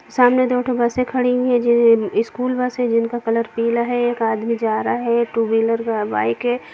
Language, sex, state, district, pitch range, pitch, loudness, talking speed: Hindi, female, Bihar, Jamui, 230-250 Hz, 235 Hz, -18 LUFS, 230 wpm